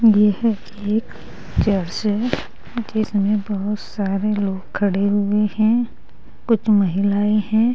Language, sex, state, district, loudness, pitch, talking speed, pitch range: Hindi, female, Uttar Pradesh, Saharanpur, -20 LUFS, 210 Hz, 110 wpm, 200-220 Hz